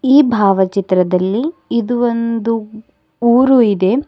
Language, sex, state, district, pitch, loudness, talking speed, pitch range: Kannada, female, Karnataka, Bidar, 230 Hz, -14 LUFS, 105 wpm, 195-245 Hz